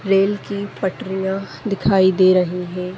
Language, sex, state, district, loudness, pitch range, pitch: Hindi, female, Uttar Pradesh, Deoria, -19 LUFS, 185-195 Hz, 190 Hz